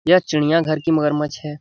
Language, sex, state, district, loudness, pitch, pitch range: Hindi, male, Bihar, Lakhisarai, -18 LUFS, 155 Hz, 150-165 Hz